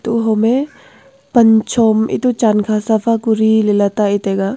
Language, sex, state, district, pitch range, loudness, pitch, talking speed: Wancho, female, Arunachal Pradesh, Longding, 215-230 Hz, -14 LUFS, 220 Hz, 185 wpm